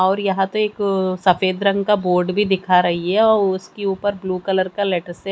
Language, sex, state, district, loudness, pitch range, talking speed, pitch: Hindi, female, Haryana, Charkhi Dadri, -18 LUFS, 185-200 Hz, 225 wpm, 190 Hz